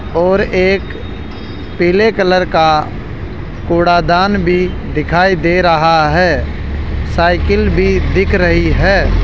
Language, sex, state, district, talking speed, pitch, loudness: Hindi, male, Rajasthan, Jaipur, 105 wpm, 165 Hz, -12 LUFS